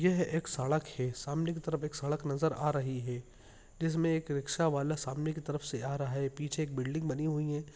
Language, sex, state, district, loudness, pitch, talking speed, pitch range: Hindi, male, Bihar, Jahanabad, -34 LUFS, 150 Hz, 225 wpm, 135-160 Hz